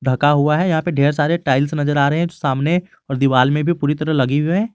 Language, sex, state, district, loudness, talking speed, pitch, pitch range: Hindi, male, Jharkhand, Garhwa, -17 LUFS, 275 wpm, 145 Hz, 140-170 Hz